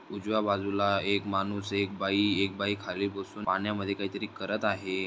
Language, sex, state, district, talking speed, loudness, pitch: Marathi, male, Maharashtra, Dhule, 175 wpm, -30 LUFS, 100 Hz